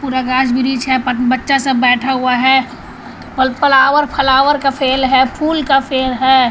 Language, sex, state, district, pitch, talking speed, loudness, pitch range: Hindi, female, Bihar, Patna, 265 Hz, 155 wpm, -13 LUFS, 255-270 Hz